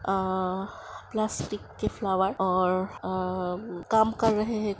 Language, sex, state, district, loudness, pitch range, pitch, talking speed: Hindi, female, Uttar Pradesh, Hamirpur, -28 LUFS, 185-215 Hz, 190 Hz, 125 wpm